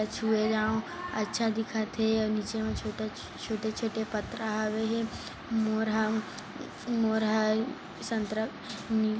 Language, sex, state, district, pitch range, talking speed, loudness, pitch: Hindi, female, Chhattisgarh, Kabirdham, 215-220 Hz, 145 wpm, -31 LUFS, 220 Hz